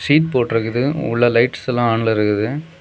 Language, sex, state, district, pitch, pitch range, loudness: Tamil, male, Tamil Nadu, Kanyakumari, 120 Hz, 115-145 Hz, -17 LUFS